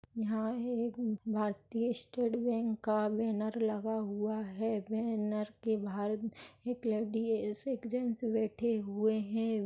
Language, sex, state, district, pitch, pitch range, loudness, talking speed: Hindi, female, Chhattisgarh, Raigarh, 220 Hz, 215-230 Hz, -35 LUFS, 125 wpm